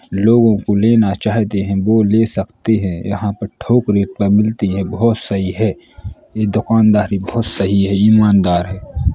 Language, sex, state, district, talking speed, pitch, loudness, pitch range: Hindi, male, Uttar Pradesh, Hamirpur, 170 wpm, 105 Hz, -15 LUFS, 100-110 Hz